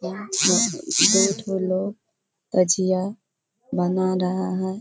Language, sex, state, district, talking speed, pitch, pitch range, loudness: Hindi, female, Bihar, Kishanganj, 110 wpm, 190 Hz, 185-200 Hz, -21 LUFS